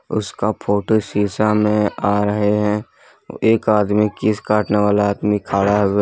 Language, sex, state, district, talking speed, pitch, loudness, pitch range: Hindi, male, Jharkhand, Deoghar, 160 wpm, 105 Hz, -18 LUFS, 100-105 Hz